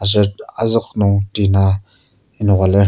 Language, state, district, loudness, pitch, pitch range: Ao, Nagaland, Kohima, -16 LUFS, 100 Hz, 100-105 Hz